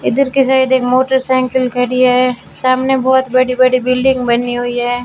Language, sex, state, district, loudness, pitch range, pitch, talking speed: Hindi, female, Rajasthan, Bikaner, -13 LUFS, 250-260 Hz, 255 Hz, 190 wpm